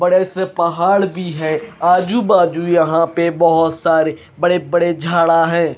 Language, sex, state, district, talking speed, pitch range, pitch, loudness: Hindi, male, Himachal Pradesh, Shimla, 155 wpm, 165-180 Hz, 170 Hz, -15 LUFS